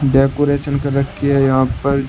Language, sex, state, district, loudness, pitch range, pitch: Hindi, male, Uttar Pradesh, Shamli, -16 LUFS, 135-140 Hz, 140 Hz